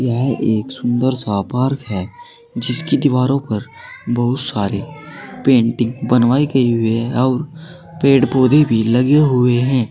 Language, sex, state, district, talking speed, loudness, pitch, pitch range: Hindi, male, Uttar Pradesh, Saharanpur, 140 wpm, -16 LUFS, 125 Hz, 120-140 Hz